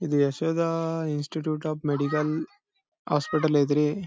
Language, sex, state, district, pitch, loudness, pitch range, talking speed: Kannada, male, Karnataka, Bijapur, 155 Hz, -26 LUFS, 150-165 Hz, 105 wpm